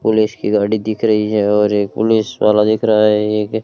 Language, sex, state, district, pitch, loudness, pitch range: Hindi, male, Rajasthan, Bikaner, 105 Hz, -15 LUFS, 105-110 Hz